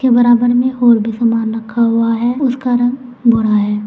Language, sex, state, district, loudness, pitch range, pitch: Hindi, female, Uttar Pradesh, Saharanpur, -13 LUFS, 225-245 Hz, 235 Hz